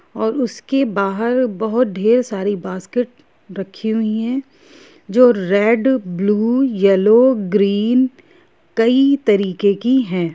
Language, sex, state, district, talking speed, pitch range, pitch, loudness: Hindi, female, Jharkhand, Jamtara, 120 wpm, 200-255 Hz, 225 Hz, -16 LUFS